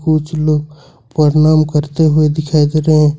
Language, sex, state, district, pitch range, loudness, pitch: Hindi, male, Jharkhand, Ranchi, 150-155 Hz, -13 LUFS, 155 Hz